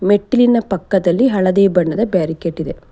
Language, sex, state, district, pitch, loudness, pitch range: Kannada, female, Karnataka, Bangalore, 195 Hz, -15 LUFS, 180-225 Hz